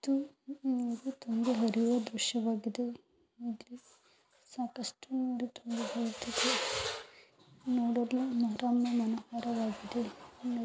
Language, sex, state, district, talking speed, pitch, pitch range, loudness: Kannada, female, Karnataka, Belgaum, 50 wpm, 245 Hz, 235-255 Hz, -34 LUFS